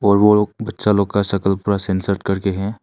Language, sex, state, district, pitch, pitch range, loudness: Hindi, male, Arunachal Pradesh, Longding, 100 Hz, 95-105 Hz, -17 LUFS